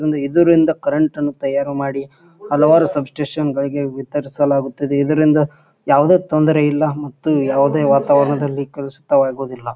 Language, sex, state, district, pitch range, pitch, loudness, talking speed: Kannada, male, Karnataka, Bijapur, 140-155 Hz, 145 Hz, -16 LUFS, 110 wpm